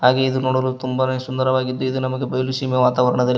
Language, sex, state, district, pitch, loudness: Kannada, male, Karnataka, Koppal, 130 Hz, -20 LUFS